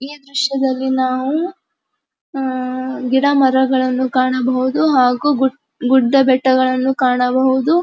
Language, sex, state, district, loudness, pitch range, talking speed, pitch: Kannada, female, Karnataka, Dharwad, -16 LUFS, 255-275 Hz, 70 wpm, 260 Hz